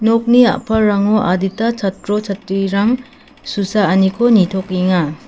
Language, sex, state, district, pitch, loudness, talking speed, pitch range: Garo, female, Meghalaya, South Garo Hills, 205 Hz, -15 LUFS, 70 wpm, 190-230 Hz